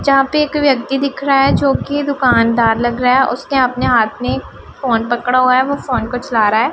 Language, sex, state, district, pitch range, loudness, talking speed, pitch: Hindi, female, Punjab, Pathankot, 240-275 Hz, -14 LUFS, 230 wpm, 255 Hz